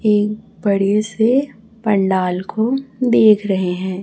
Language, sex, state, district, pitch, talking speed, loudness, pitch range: Hindi, female, Chhattisgarh, Raipur, 210 Hz, 120 wpm, -17 LUFS, 195-225 Hz